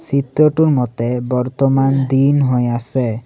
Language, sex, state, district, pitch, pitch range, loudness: Assamese, male, Assam, Sonitpur, 130 Hz, 125-140 Hz, -16 LUFS